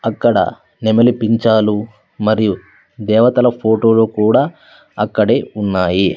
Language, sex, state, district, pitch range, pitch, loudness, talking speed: Telugu, male, Andhra Pradesh, Sri Satya Sai, 105-115 Hz, 110 Hz, -14 LUFS, 80 wpm